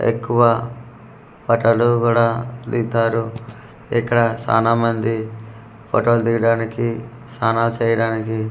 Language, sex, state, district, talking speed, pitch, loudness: Telugu, male, Andhra Pradesh, Manyam, 80 wpm, 115 Hz, -18 LUFS